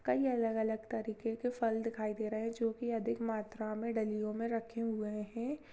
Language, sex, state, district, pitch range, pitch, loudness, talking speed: Hindi, female, Chhattisgarh, Jashpur, 215-230 Hz, 225 Hz, -37 LUFS, 200 wpm